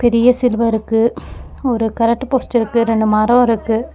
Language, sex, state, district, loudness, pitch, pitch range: Tamil, female, Tamil Nadu, Nilgiris, -15 LUFS, 230 Hz, 225-245 Hz